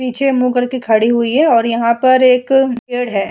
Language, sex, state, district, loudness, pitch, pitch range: Hindi, female, Uttar Pradesh, Muzaffarnagar, -13 LUFS, 250 Hz, 235-255 Hz